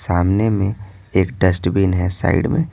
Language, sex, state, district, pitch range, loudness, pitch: Hindi, male, Bihar, Patna, 90-105 Hz, -18 LUFS, 95 Hz